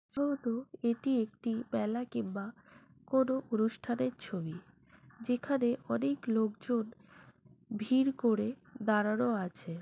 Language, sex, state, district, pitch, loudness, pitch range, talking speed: Bengali, female, West Bengal, Jhargram, 230 Hz, -34 LUFS, 215-255 Hz, 90 wpm